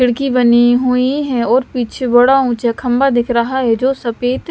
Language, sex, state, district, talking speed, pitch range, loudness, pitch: Hindi, female, Himachal Pradesh, Shimla, 185 wpm, 240-260 Hz, -14 LUFS, 250 Hz